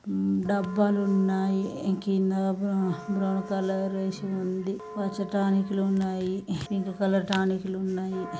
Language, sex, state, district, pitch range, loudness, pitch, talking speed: Telugu, female, Telangana, Nalgonda, 190-195 Hz, -28 LUFS, 195 Hz, 105 wpm